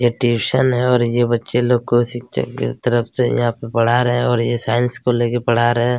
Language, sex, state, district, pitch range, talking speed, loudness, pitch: Hindi, male, Chhattisgarh, Kabirdham, 120-125 Hz, 250 wpm, -17 LUFS, 120 Hz